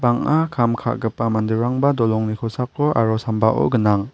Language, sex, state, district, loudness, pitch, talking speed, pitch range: Garo, male, Meghalaya, West Garo Hills, -19 LUFS, 115 Hz, 115 wpm, 110-125 Hz